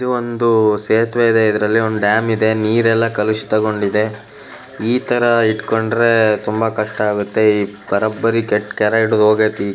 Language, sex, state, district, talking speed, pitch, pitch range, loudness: Kannada, male, Karnataka, Shimoga, 115 wpm, 110 Hz, 105-115 Hz, -16 LUFS